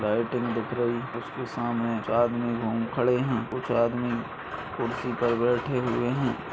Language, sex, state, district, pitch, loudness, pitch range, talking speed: Hindi, male, Uttarakhand, Uttarkashi, 120 Hz, -28 LUFS, 115-125 Hz, 130 wpm